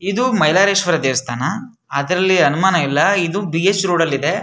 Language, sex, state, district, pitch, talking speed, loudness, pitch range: Kannada, male, Karnataka, Shimoga, 185 Hz, 160 wpm, -16 LUFS, 155-200 Hz